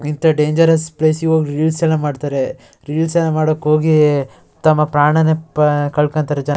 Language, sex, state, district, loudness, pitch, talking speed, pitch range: Kannada, male, Karnataka, Shimoga, -15 LUFS, 155 Hz, 145 wpm, 145-160 Hz